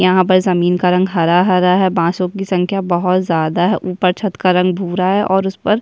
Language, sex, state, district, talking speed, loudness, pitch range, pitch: Hindi, female, Uttarakhand, Tehri Garhwal, 225 wpm, -15 LUFS, 180-190 Hz, 185 Hz